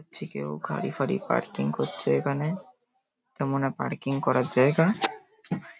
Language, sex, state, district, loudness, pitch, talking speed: Bengali, male, West Bengal, Paschim Medinipur, -27 LUFS, 150 Hz, 135 wpm